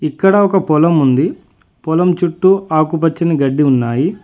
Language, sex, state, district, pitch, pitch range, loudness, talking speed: Telugu, male, Telangana, Adilabad, 160 Hz, 140-180 Hz, -13 LUFS, 125 wpm